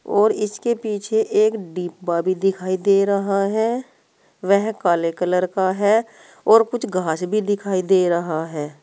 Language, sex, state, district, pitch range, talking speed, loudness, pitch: Hindi, female, Uttar Pradesh, Saharanpur, 180-215 Hz, 155 wpm, -20 LUFS, 195 Hz